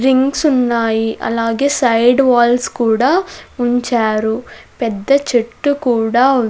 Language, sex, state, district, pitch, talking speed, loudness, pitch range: Telugu, female, Andhra Pradesh, Sri Satya Sai, 245 Hz, 100 wpm, -15 LUFS, 230-265 Hz